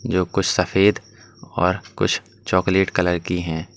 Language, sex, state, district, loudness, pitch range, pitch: Hindi, male, Uttar Pradesh, Lalitpur, -20 LUFS, 90-100 Hz, 90 Hz